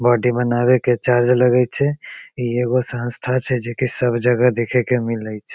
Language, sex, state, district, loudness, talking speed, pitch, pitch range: Maithili, male, Bihar, Begusarai, -18 LUFS, 195 wpm, 125 Hz, 120-125 Hz